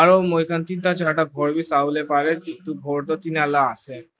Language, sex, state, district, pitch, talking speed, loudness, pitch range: Nagamese, male, Nagaland, Dimapur, 155 Hz, 270 wpm, -21 LUFS, 145-165 Hz